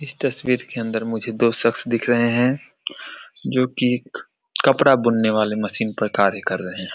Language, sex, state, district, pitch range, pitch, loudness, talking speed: Hindi, male, Bihar, Saran, 110-125 Hz, 115 Hz, -20 LUFS, 190 wpm